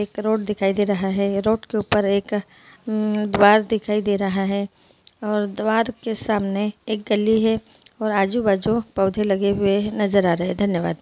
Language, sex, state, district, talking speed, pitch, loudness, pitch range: Hindi, female, Bihar, Muzaffarpur, 180 wpm, 210 Hz, -21 LUFS, 200-215 Hz